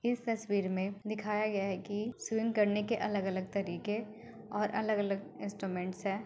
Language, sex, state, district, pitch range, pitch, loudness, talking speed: Hindi, female, Uttar Pradesh, Etah, 195-220 Hz, 205 Hz, -35 LUFS, 170 wpm